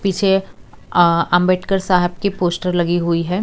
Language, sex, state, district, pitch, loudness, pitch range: Hindi, female, Chhattisgarh, Raipur, 180 Hz, -17 LUFS, 175-195 Hz